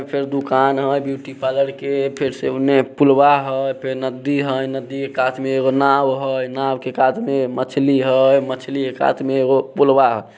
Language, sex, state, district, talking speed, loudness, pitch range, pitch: Maithili, male, Bihar, Samastipur, 175 wpm, -18 LUFS, 130-140 Hz, 135 Hz